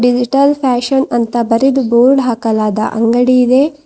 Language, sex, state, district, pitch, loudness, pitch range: Kannada, female, Karnataka, Bidar, 245 Hz, -12 LUFS, 235-270 Hz